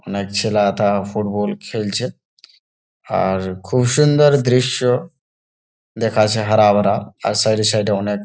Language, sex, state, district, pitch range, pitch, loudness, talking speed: Bengali, male, West Bengal, Jalpaiguri, 100-125 Hz, 105 Hz, -17 LUFS, 125 wpm